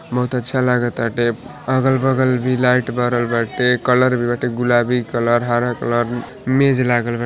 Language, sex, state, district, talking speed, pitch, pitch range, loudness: Bhojpuri, male, Uttar Pradesh, Deoria, 150 wpm, 125 Hz, 120-125 Hz, -17 LUFS